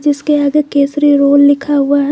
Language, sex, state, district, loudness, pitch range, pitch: Hindi, female, Jharkhand, Garhwa, -11 LUFS, 280-290 Hz, 285 Hz